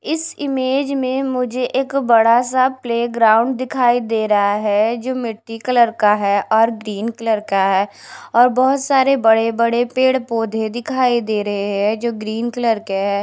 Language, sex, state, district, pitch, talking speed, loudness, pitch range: Hindi, female, Punjab, Kapurthala, 235 Hz, 170 wpm, -17 LUFS, 220-255 Hz